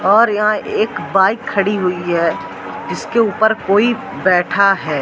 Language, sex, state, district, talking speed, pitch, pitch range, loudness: Hindi, male, Madhya Pradesh, Katni, 145 wpm, 200 Hz, 185-220 Hz, -15 LUFS